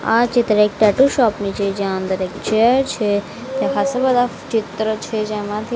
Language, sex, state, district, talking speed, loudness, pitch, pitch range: Gujarati, female, Gujarat, Gandhinagar, 185 wpm, -18 LUFS, 220 Hz, 205-245 Hz